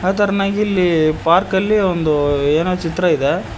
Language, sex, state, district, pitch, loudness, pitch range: Kannada, male, Karnataka, Koppal, 180 Hz, -16 LUFS, 160-195 Hz